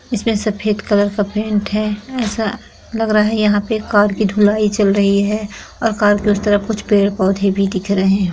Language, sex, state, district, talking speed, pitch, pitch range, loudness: Hindi, female, Jharkhand, Sahebganj, 215 wpm, 210 Hz, 200-215 Hz, -16 LUFS